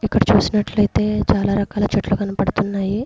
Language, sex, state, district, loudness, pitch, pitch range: Telugu, female, Andhra Pradesh, Guntur, -18 LUFS, 200 Hz, 175-205 Hz